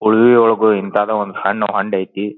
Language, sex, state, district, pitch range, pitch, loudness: Kannada, male, Karnataka, Dharwad, 100-110 Hz, 105 Hz, -15 LUFS